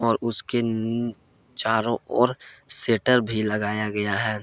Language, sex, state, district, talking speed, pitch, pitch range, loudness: Hindi, male, Jharkhand, Palamu, 120 wpm, 110 Hz, 105-115 Hz, -21 LUFS